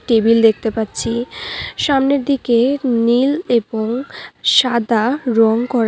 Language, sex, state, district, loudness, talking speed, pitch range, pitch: Bengali, female, West Bengal, Cooch Behar, -16 LUFS, 100 wpm, 225-260 Hz, 235 Hz